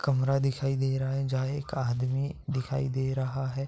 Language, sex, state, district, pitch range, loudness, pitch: Hindi, male, Uttar Pradesh, Etah, 130-135 Hz, -30 LUFS, 135 Hz